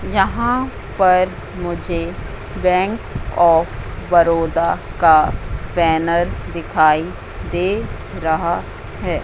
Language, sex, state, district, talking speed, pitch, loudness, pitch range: Hindi, female, Madhya Pradesh, Katni, 80 wpm, 170 Hz, -18 LUFS, 165-180 Hz